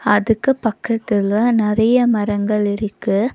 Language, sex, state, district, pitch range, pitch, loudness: Tamil, female, Tamil Nadu, Nilgiris, 210-235 Hz, 215 Hz, -17 LUFS